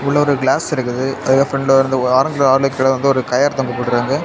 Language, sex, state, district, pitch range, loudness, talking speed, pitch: Tamil, male, Tamil Nadu, Kanyakumari, 130-140 Hz, -15 LUFS, 140 wpm, 135 Hz